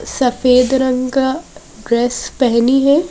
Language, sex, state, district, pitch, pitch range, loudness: Hindi, female, Madhya Pradesh, Bhopal, 255 Hz, 245-265 Hz, -14 LUFS